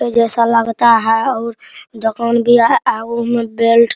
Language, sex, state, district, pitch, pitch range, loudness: Maithili, male, Bihar, Araria, 235 Hz, 230-235 Hz, -14 LUFS